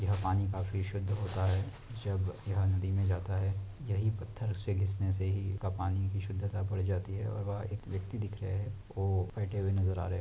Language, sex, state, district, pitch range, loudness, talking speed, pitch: Hindi, male, Jharkhand, Jamtara, 95-100 Hz, -35 LUFS, 210 wpm, 95 Hz